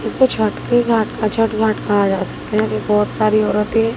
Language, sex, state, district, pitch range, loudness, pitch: Hindi, female, Bihar, Katihar, 210-225 Hz, -17 LUFS, 215 Hz